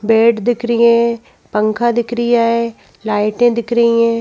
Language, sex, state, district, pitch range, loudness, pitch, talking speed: Hindi, female, Madhya Pradesh, Bhopal, 225-235 Hz, -14 LUFS, 235 Hz, 155 wpm